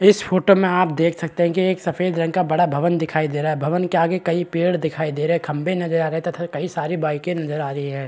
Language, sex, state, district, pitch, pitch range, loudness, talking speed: Hindi, male, Chhattisgarh, Rajnandgaon, 170 Hz, 155-180 Hz, -20 LUFS, 305 wpm